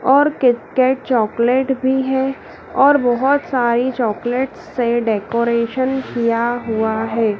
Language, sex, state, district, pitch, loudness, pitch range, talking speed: Hindi, female, Madhya Pradesh, Dhar, 245 Hz, -17 LUFS, 235-265 Hz, 120 wpm